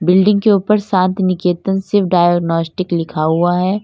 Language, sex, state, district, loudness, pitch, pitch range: Hindi, female, Uttar Pradesh, Lalitpur, -15 LUFS, 185 Hz, 175-195 Hz